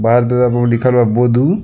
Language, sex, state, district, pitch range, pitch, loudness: Bhojpuri, male, Bihar, East Champaran, 120-125 Hz, 120 Hz, -13 LUFS